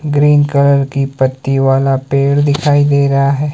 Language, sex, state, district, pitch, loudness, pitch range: Hindi, male, Himachal Pradesh, Shimla, 140 Hz, -12 LUFS, 135-145 Hz